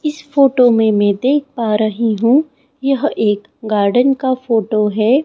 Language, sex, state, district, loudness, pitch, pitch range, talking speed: Hindi, female, Chhattisgarh, Raipur, -15 LUFS, 245 Hz, 215-275 Hz, 160 wpm